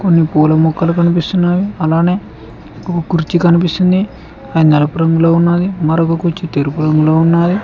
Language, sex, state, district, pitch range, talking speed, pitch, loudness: Telugu, male, Telangana, Mahabubabad, 160-175 Hz, 135 wpm, 170 Hz, -13 LUFS